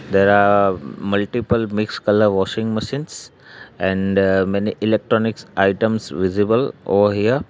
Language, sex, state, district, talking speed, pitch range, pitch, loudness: English, male, Gujarat, Valsad, 110 wpm, 95-110 Hz, 100 Hz, -18 LUFS